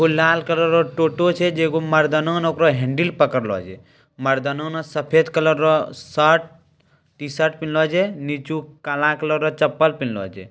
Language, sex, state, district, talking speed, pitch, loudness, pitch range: Maithili, male, Bihar, Bhagalpur, 150 wpm, 155 Hz, -19 LUFS, 145-160 Hz